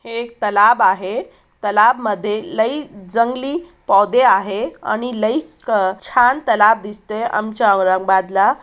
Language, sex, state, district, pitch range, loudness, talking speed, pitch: Marathi, female, Maharashtra, Aurangabad, 195-240 Hz, -17 LUFS, 120 wpm, 215 Hz